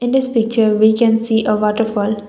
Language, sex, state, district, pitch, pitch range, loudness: English, female, Assam, Kamrup Metropolitan, 220 Hz, 215-230 Hz, -15 LUFS